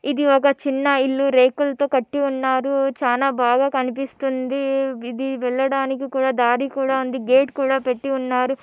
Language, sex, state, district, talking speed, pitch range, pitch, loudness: Telugu, female, Andhra Pradesh, Anantapur, 140 wpm, 260-275 Hz, 270 Hz, -20 LUFS